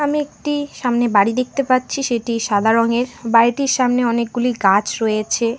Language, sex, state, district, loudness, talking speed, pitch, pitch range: Bengali, female, West Bengal, Alipurduar, -17 LUFS, 150 wpm, 240 Hz, 230-255 Hz